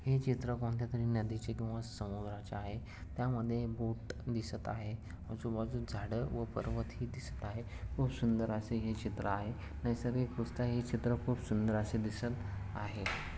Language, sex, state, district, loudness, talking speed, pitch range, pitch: Marathi, male, Maharashtra, Sindhudurg, -38 LUFS, 145 wpm, 105-120 Hz, 115 Hz